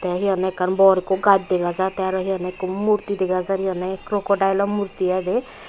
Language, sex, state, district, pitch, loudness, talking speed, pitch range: Chakma, female, Tripura, Unakoti, 190 Hz, -21 LUFS, 255 wpm, 185-200 Hz